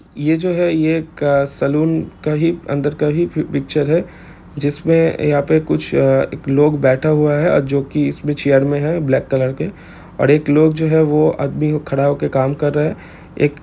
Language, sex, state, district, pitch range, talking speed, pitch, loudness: Hindi, male, Chhattisgarh, Bilaspur, 140-155 Hz, 215 wpm, 150 Hz, -16 LUFS